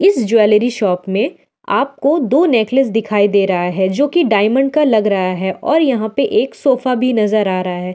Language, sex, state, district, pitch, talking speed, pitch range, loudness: Hindi, female, Delhi, New Delhi, 225 Hz, 210 wpm, 200-270 Hz, -14 LUFS